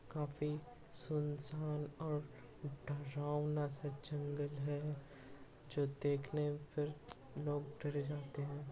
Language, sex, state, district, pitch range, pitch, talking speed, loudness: Hindi, male, Uttar Pradesh, Hamirpur, 145-150 Hz, 145 Hz, 95 wpm, -42 LUFS